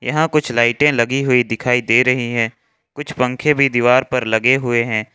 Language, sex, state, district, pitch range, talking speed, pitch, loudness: Hindi, male, Jharkhand, Ranchi, 120-135 Hz, 195 wpm, 125 Hz, -16 LUFS